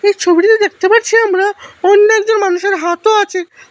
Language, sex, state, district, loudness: Bengali, male, Assam, Hailakandi, -11 LUFS